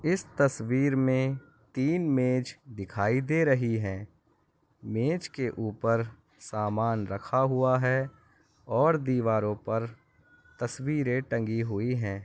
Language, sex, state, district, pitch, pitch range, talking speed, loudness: Hindi, male, Andhra Pradesh, Visakhapatnam, 125 Hz, 110-135 Hz, 115 wpm, -28 LUFS